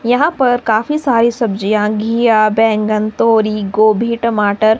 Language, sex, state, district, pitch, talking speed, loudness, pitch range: Hindi, male, Himachal Pradesh, Shimla, 220 Hz, 125 wpm, -13 LUFS, 215-235 Hz